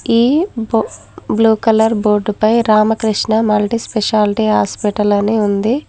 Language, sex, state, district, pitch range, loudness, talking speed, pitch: Telugu, female, Telangana, Mahabubabad, 210-225 Hz, -14 LUFS, 110 wpm, 220 Hz